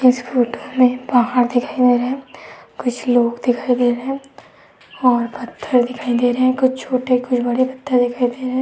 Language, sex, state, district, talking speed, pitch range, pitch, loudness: Hindi, female, Uttar Pradesh, Etah, 180 wpm, 245-255 Hz, 250 Hz, -18 LUFS